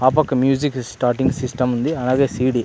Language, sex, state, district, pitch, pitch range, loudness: Telugu, male, Andhra Pradesh, Anantapur, 130 Hz, 125-135 Hz, -19 LUFS